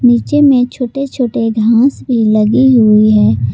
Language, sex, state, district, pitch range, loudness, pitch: Hindi, female, Jharkhand, Garhwa, 215-260 Hz, -11 LUFS, 240 Hz